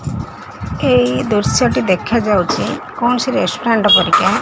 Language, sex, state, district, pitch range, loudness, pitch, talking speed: Odia, female, Odisha, Khordha, 180-235 Hz, -14 LUFS, 210 Hz, 95 wpm